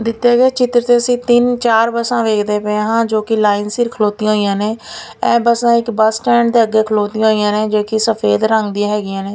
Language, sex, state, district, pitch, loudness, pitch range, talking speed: Punjabi, female, Punjab, Pathankot, 220 Hz, -14 LUFS, 210-235 Hz, 210 wpm